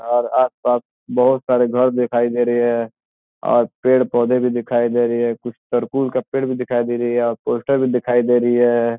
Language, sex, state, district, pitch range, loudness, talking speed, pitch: Hindi, male, Bihar, Gopalganj, 120-125 Hz, -18 LUFS, 215 wpm, 120 Hz